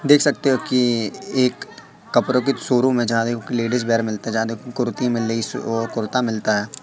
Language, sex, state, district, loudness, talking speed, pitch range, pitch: Hindi, male, Madhya Pradesh, Katni, -20 LUFS, 200 wpm, 115-125 Hz, 120 Hz